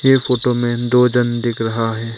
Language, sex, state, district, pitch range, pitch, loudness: Hindi, male, Arunachal Pradesh, Papum Pare, 115-125 Hz, 120 Hz, -16 LUFS